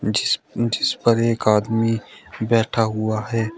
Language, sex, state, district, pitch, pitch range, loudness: Hindi, male, Uttar Pradesh, Shamli, 115 Hz, 110-115 Hz, -20 LUFS